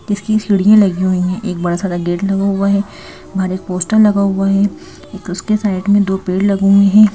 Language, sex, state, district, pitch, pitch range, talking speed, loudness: Hindi, female, Madhya Pradesh, Bhopal, 195 Hz, 185-205 Hz, 210 wpm, -14 LUFS